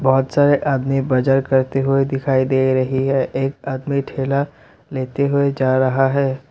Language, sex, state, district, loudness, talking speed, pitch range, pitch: Hindi, male, Assam, Sonitpur, -18 LUFS, 165 wpm, 130-140 Hz, 135 Hz